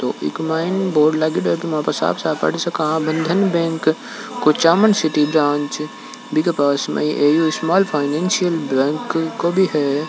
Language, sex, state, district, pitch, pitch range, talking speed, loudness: Hindi, male, Rajasthan, Nagaur, 160 Hz, 150-170 Hz, 130 wpm, -18 LUFS